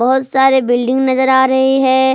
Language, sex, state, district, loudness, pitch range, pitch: Hindi, female, Jharkhand, Palamu, -12 LUFS, 260-265 Hz, 265 Hz